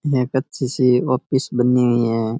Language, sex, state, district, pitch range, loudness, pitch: Rajasthani, male, Rajasthan, Churu, 125-130 Hz, -19 LUFS, 125 Hz